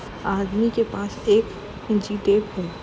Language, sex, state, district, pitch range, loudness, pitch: Hindi, female, Uttar Pradesh, Jalaun, 200-225 Hz, -23 LUFS, 210 Hz